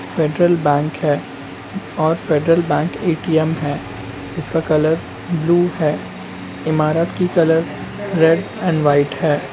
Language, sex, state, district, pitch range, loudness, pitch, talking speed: Hindi, male, Uttarakhand, Uttarkashi, 145-170 Hz, -18 LUFS, 160 Hz, 120 wpm